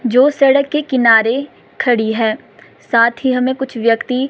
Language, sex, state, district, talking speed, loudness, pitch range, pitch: Hindi, female, Himachal Pradesh, Shimla, 155 wpm, -14 LUFS, 230-270 Hz, 250 Hz